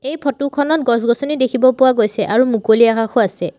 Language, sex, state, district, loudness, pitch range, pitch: Assamese, female, Assam, Sonitpur, -15 LUFS, 225-275 Hz, 245 Hz